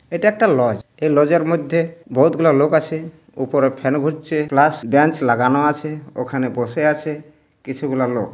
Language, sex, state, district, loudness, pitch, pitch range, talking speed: Bengali, male, West Bengal, Purulia, -18 LUFS, 150 Hz, 135-160 Hz, 165 wpm